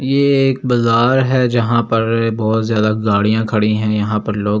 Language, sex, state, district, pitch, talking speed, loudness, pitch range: Hindi, male, Delhi, New Delhi, 115 Hz, 195 wpm, -15 LUFS, 110-120 Hz